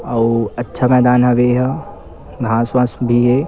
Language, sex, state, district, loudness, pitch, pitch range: Chhattisgarhi, male, Chhattisgarh, Kabirdham, -15 LUFS, 120 Hz, 115-125 Hz